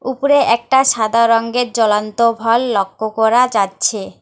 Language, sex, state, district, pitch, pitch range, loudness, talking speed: Bengali, female, West Bengal, Alipurduar, 230 Hz, 220-245 Hz, -15 LUFS, 130 wpm